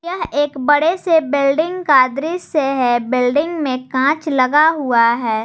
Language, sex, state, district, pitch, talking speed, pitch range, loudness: Hindi, female, Jharkhand, Garhwa, 290 Hz, 155 wpm, 255-315 Hz, -16 LUFS